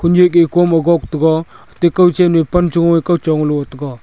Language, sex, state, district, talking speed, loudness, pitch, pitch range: Wancho, male, Arunachal Pradesh, Longding, 165 wpm, -13 LUFS, 170 Hz, 160-175 Hz